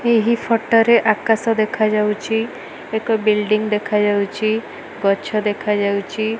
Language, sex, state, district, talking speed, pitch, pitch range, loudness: Odia, female, Odisha, Malkangiri, 120 wpm, 215 Hz, 210-225 Hz, -18 LUFS